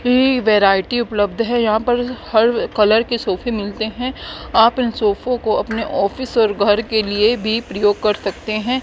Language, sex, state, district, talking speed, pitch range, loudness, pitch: Hindi, female, Haryana, Charkhi Dadri, 185 wpm, 210-245 Hz, -17 LUFS, 225 Hz